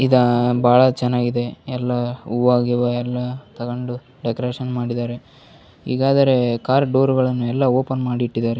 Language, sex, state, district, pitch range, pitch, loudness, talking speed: Kannada, male, Karnataka, Bellary, 120-130 Hz, 125 Hz, -19 LUFS, 110 wpm